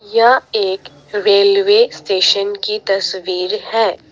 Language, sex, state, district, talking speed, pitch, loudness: Hindi, female, Assam, Sonitpur, 100 wpm, 210 Hz, -14 LUFS